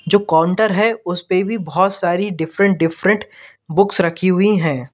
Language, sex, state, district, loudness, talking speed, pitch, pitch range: Hindi, male, Uttar Pradesh, Lalitpur, -17 LUFS, 170 wpm, 185 Hz, 165-205 Hz